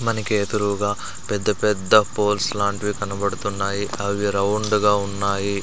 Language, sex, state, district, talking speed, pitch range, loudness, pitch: Telugu, male, Andhra Pradesh, Sri Satya Sai, 105 wpm, 100-105 Hz, -21 LUFS, 100 Hz